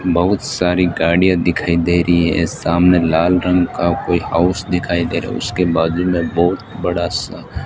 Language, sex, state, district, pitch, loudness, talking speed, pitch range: Hindi, male, Rajasthan, Bikaner, 85 Hz, -16 LUFS, 190 wpm, 85-90 Hz